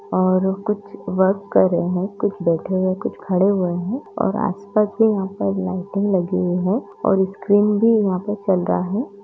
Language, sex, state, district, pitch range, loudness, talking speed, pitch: Hindi, female, Bihar, Bhagalpur, 185-205 Hz, -20 LUFS, 210 wpm, 195 Hz